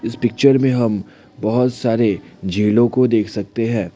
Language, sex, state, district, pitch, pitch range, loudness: Hindi, male, Assam, Kamrup Metropolitan, 115 Hz, 105-125 Hz, -17 LUFS